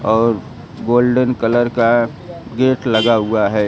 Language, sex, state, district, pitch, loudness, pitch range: Hindi, male, Uttar Pradesh, Lucknow, 115 Hz, -15 LUFS, 110-120 Hz